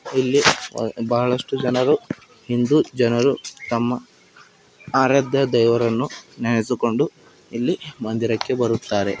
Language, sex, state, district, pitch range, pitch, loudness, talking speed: Kannada, male, Karnataka, Bidar, 115-130 Hz, 120 Hz, -20 LUFS, 80 wpm